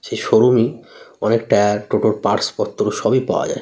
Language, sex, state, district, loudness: Bengali, male, West Bengal, North 24 Parganas, -17 LUFS